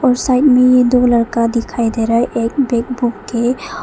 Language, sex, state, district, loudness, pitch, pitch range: Hindi, female, Arunachal Pradesh, Papum Pare, -14 LUFS, 245 Hz, 235-255 Hz